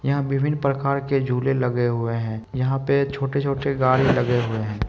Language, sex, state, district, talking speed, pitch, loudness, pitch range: Maithili, male, Bihar, Supaul, 185 wpm, 135 Hz, -22 LUFS, 120-140 Hz